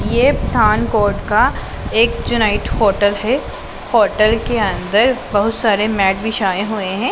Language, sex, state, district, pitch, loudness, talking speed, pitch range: Hindi, female, Punjab, Pathankot, 215 Hz, -16 LUFS, 145 wpm, 200-225 Hz